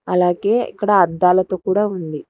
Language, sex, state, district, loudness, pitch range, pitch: Telugu, female, Telangana, Hyderabad, -17 LUFS, 180-205 Hz, 185 Hz